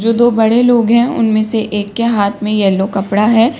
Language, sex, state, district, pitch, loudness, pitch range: Hindi, female, Uttar Pradesh, Lalitpur, 220 Hz, -13 LUFS, 210-235 Hz